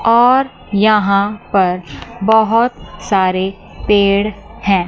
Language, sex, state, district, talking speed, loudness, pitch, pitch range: Hindi, female, Chandigarh, Chandigarh, 85 wpm, -14 LUFS, 205 Hz, 195-220 Hz